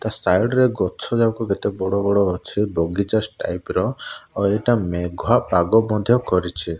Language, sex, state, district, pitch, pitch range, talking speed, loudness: Odia, male, Odisha, Malkangiri, 100 Hz, 90-110 Hz, 160 wpm, -20 LUFS